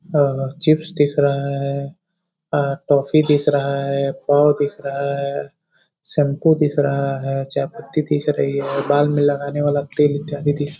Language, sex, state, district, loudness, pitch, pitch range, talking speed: Hindi, male, Uttar Pradesh, Deoria, -19 LUFS, 145 Hz, 140-150 Hz, 165 wpm